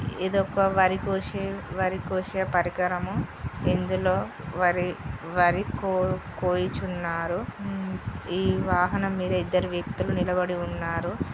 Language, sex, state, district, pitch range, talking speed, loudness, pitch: Telugu, male, Telangana, Karimnagar, 175-190 Hz, 75 wpm, -27 LUFS, 180 Hz